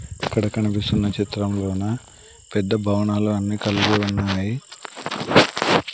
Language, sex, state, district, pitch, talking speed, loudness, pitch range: Telugu, male, Andhra Pradesh, Sri Satya Sai, 105 Hz, 80 wpm, -21 LUFS, 100-105 Hz